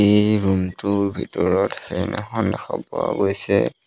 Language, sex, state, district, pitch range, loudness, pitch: Assamese, male, Assam, Sonitpur, 95-105 Hz, -20 LUFS, 100 Hz